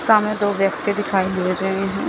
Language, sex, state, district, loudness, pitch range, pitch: Hindi, female, Chandigarh, Chandigarh, -20 LUFS, 190-210 Hz, 195 Hz